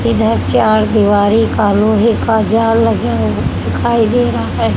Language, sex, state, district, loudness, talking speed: Hindi, female, Haryana, Rohtak, -13 LUFS, 165 wpm